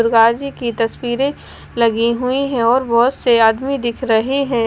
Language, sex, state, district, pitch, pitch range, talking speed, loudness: Hindi, female, Bihar, West Champaran, 240 Hz, 230-260 Hz, 165 wpm, -16 LUFS